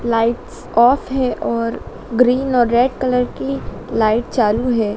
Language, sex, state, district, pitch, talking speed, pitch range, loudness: Hindi, female, Madhya Pradesh, Dhar, 235 Hz, 145 wpm, 225-250 Hz, -17 LUFS